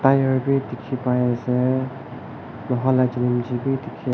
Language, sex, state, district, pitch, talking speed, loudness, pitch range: Nagamese, male, Nagaland, Kohima, 130 Hz, 145 wpm, -22 LUFS, 125-135 Hz